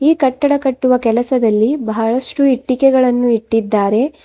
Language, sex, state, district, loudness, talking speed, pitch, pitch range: Kannada, female, Karnataka, Bidar, -14 LUFS, 100 wpm, 250 Hz, 225-270 Hz